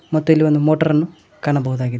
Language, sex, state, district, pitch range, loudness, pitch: Kannada, male, Karnataka, Koppal, 145-160 Hz, -17 LUFS, 155 Hz